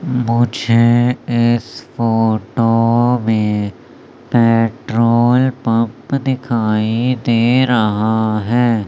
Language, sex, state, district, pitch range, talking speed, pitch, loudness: Hindi, male, Madhya Pradesh, Umaria, 110-120 Hz, 70 wpm, 115 Hz, -15 LUFS